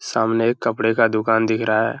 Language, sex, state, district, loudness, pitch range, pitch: Hindi, male, Uttar Pradesh, Hamirpur, -19 LUFS, 110-115 Hz, 110 Hz